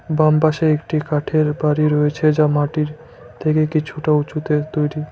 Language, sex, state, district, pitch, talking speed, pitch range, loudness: Bengali, male, West Bengal, Cooch Behar, 155 Hz, 140 wpm, 150-155 Hz, -18 LUFS